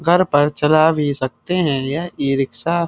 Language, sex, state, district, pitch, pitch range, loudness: Hindi, male, Uttar Pradesh, Muzaffarnagar, 150 Hz, 140-170 Hz, -17 LUFS